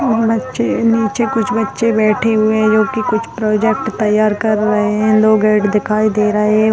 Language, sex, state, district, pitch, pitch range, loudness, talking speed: Hindi, female, Rajasthan, Nagaur, 220 Hz, 215-225 Hz, -14 LUFS, 205 wpm